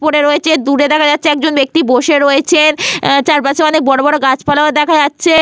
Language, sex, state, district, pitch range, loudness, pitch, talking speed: Bengali, female, Jharkhand, Sahebganj, 280-310 Hz, -11 LUFS, 300 Hz, 175 wpm